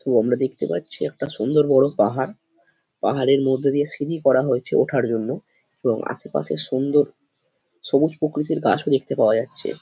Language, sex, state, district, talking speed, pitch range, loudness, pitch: Bengali, male, West Bengal, Dakshin Dinajpur, 160 wpm, 125-145 Hz, -21 LUFS, 135 Hz